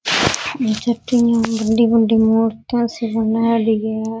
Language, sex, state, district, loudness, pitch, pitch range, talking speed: Rajasthani, female, Rajasthan, Nagaur, -17 LUFS, 225 Hz, 220-235 Hz, 85 wpm